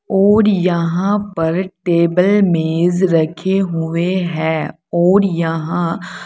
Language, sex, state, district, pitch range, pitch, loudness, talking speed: Hindi, female, Uttar Pradesh, Saharanpur, 165-190 Hz, 175 Hz, -16 LUFS, 95 wpm